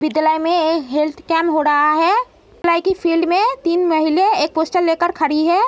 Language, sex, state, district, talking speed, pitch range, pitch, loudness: Hindi, female, Uttar Pradesh, Etah, 190 wpm, 315-355 Hz, 330 Hz, -16 LUFS